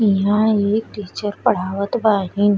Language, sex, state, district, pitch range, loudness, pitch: Bhojpuri, female, Uttar Pradesh, Deoria, 200-215 Hz, -19 LUFS, 205 Hz